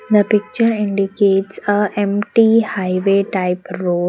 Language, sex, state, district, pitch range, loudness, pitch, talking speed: English, female, Haryana, Jhajjar, 185-210 Hz, -16 LUFS, 200 Hz, 115 wpm